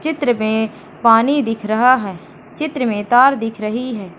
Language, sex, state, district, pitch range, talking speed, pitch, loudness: Hindi, female, Madhya Pradesh, Katni, 215-255 Hz, 170 wpm, 230 Hz, -16 LUFS